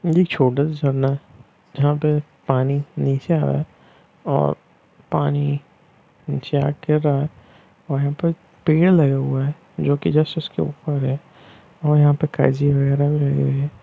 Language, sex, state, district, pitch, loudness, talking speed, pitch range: Hindi, male, Bihar, Lakhisarai, 145 Hz, -20 LUFS, 180 wpm, 140-155 Hz